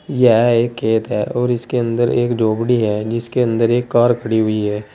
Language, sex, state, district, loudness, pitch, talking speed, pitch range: Hindi, male, Uttar Pradesh, Saharanpur, -16 LUFS, 115 Hz, 205 wpm, 110-120 Hz